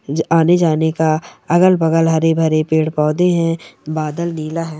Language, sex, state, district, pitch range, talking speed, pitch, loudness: Hindi, male, Chhattisgarh, Sarguja, 155-165 Hz, 150 wpm, 160 Hz, -16 LUFS